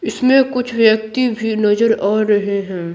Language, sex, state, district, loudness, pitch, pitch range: Hindi, female, Bihar, Patna, -15 LUFS, 220 Hz, 205-240 Hz